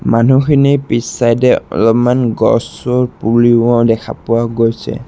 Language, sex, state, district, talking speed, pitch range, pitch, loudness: Assamese, male, Assam, Sonitpur, 120 wpm, 115-125 Hz, 120 Hz, -12 LUFS